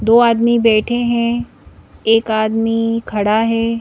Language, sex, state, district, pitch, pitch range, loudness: Hindi, female, Madhya Pradesh, Bhopal, 230 Hz, 220-235 Hz, -15 LUFS